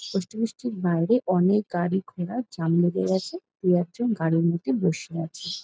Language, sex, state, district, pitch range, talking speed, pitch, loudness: Bengali, female, West Bengal, Jalpaiguri, 170-215 Hz, 170 wpm, 180 Hz, -25 LUFS